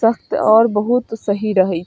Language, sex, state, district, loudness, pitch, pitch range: Bajjika, female, Bihar, Vaishali, -16 LUFS, 215 Hz, 200-225 Hz